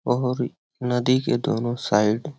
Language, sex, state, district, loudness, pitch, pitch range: Hindi, male, Bihar, Lakhisarai, -23 LUFS, 125 Hz, 115-130 Hz